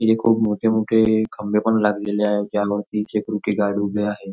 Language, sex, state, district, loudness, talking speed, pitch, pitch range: Marathi, male, Maharashtra, Nagpur, -20 LUFS, 180 wpm, 105 Hz, 105-110 Hz